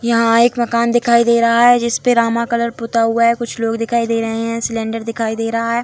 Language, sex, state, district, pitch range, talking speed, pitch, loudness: Hindi, female, Bihar, Samastipur, 230-235 Hz, 245 wpm, 230 Hz, -15 LUFS